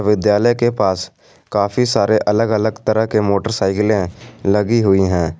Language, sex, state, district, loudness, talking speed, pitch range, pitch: Hindi, male, Jharkhand, Garhwa, -16 LUFS, 155 wpm, 100-110 Hz, 105 Hz